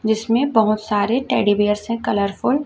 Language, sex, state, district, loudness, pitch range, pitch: Hindi, female, Chhattisgarh, Raipur, -19 LUFS, 205-230 Hz, 220 Hz